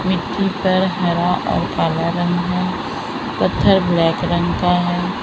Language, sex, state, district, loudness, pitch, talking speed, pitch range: Hindi, female, Maharashtra, Mumbai Suburban, -18 LUFS, 175 Hz, 140 wpm, 175-185 Hz